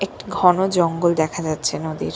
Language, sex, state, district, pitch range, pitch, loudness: Bengali, female, West Bengal, Dakshin Dinajpur, 160-185 Hz, 170 Hz, -20 LUFS